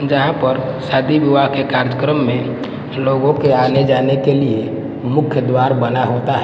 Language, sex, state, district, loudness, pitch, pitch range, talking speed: Hindi, male, Gujarat, Gandhinagar, -15 LUFS, 135 Hz, 130-140 Hz, 160 wpm